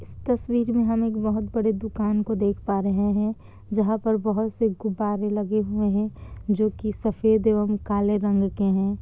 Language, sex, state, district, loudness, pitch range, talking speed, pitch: Hindi, female, Bihar, Kishanganj, -24 LUFS, 205-220 Hz, 195 wpm, 215 Hz